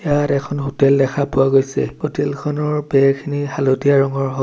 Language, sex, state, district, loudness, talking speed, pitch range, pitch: Assamese, male, Assam, Sonitpur, -17 LUFS, 160 wpm, 135-145 Hz, 140 Hz